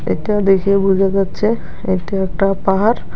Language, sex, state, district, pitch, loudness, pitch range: Bengali, female, West Bengal, Alipurduar, 195 Hz, -16 LUFS, 190-205 Hz